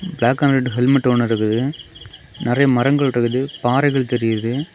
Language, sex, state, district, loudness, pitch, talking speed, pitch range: Tamil, male, Tamil Nadu, Kanyakumari, -18 LUFS, 125 Hz, 140 wpm, 120-140 Hz